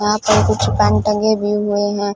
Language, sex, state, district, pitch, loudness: Hindi, female, Punjab, Fazilka, 205 Hz, -16 LUFS